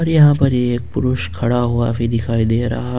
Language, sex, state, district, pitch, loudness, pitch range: Hindi, male, Jharkhand, Ranchi, 120 Hz, -17 LUFS, 115-125 Hz